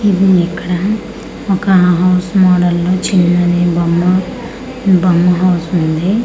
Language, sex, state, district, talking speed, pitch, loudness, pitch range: Telugu, female, Andhra Pradesh, Manyam, 105 wpm, 180 Hz, -12 LUFS, 175-195 Hz